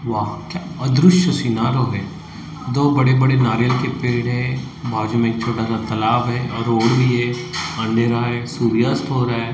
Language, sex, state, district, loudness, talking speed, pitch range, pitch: Hindi, male, Maharashtra, Mumbai Suburban, -18 LUFS, 180 wpm, 115-130 Hz, 120 Hz